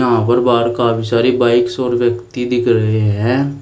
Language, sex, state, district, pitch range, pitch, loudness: Hindi, male, Uttar Pradesh, Shamli, 115-125 Hz, 120 Hz, -15 LUFS